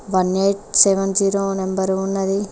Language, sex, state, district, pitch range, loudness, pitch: Telugu, female, Telangana, Mahabubabad, 190-195 Hz, -18 LUFS, 195 Hz